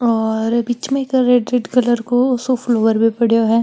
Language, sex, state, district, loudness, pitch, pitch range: Marwari, female, Rajasthan, Nagaur, -16 LUFS, 240 Hz, 230-250 Hz